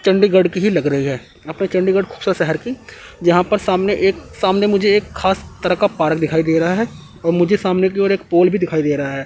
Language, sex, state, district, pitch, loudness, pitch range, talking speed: Hindi, male, Chandigarh, Chandigarh, 185 Hz, -17 LUFS, 165-195 Hz, 240 wpm